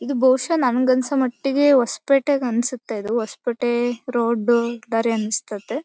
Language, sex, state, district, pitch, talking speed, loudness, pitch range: Kannada, female, Karnataka, Bellary, 245 Hz, 135 wpm, -20 LUFS, 235-265 Hz